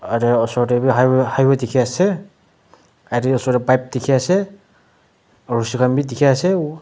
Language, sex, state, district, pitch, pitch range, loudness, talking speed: Nagamese, male, Nagaland, Dimapur, 130 Hz, 120-140 Hz, -17 LUFS, 165 wpm